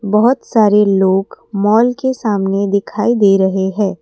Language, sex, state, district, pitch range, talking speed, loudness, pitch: Hindi, female, Assam, Kamrup Metropolitan, 195-220 Hz, 150 wpm, -14 LUFS, 205 Hz